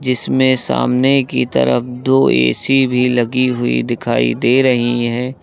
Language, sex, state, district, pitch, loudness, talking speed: Hindi, male, Uttar Pradesh, Lucknow, 125 Hz, -15 LUFS, 145 wpm